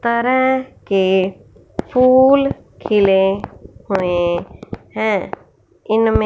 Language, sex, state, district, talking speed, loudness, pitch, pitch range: Hindi, female, Punjab, Fazilka, 65 wpm, -16 LUFS, 205 Hz, 190-255 Hz